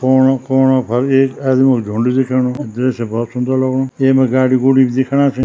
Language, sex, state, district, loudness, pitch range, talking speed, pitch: Garhwali, male, Uttarakhand, Tehri Garhwal, -14 LUFS, 125-135 Hz, 175 wpm, 130 Hz